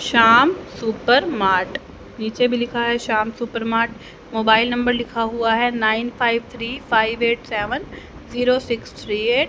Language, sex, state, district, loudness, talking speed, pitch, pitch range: Hindi, female, Haryana, Rohtak, -19 LUFS, 160 wpm, 235 Hz, 225-245 Hz